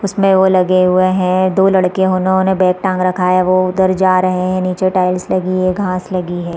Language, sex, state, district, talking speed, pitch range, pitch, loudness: Hindi, female, Chhattisgarh, Raigarh, 220 wpm, 185-190 Hz, 185 Hz, -13 LUFS